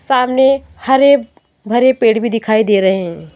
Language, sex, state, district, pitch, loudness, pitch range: Hindi, female, Rajasthan, Jaipur, 235 Hz, -13 LUFS, 215-265 Hz